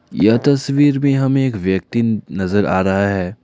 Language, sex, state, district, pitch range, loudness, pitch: Hindi, male, Assam, Kamrup Metropolitan, 95-135 Hz, -16 LUFS, 110 Hz